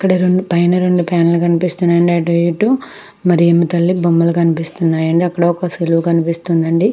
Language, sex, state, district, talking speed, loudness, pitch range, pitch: Telugu, female, Andhra Pradesh, Krishna, 140 wpm, -14 LUFS, 170-180 Hz, 170 Hz